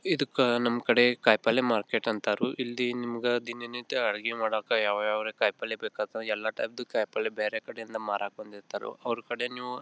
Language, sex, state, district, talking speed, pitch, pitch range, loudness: Kannada, male, Karnataka, Belgaum, 145 wpm, 120 Hz, 110-120 Hz, -29 LUFS